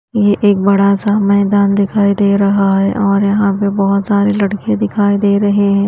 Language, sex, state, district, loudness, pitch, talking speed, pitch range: Hindi, female, Haryana, Jhajjar, -12 LUFS, 200 Hz, 195 wpm, 200-205 Hz